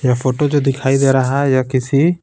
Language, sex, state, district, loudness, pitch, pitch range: Hindi, male, Bihar, Patna, -15 LUFS, 135 Hz, 130-140 Hz